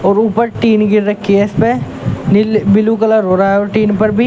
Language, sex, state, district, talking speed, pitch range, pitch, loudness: Hindi, male, Uttar Pradesh, Shamli, 225 wpm, 200-220 Hz, 210 Hz, -12 LUFS